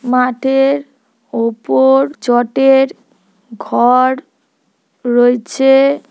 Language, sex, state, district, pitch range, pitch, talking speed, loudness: Bengali, female, West Bengal, Purulia, 240-270 Hz, 255 Hz, 50 wpm, -13 LUFS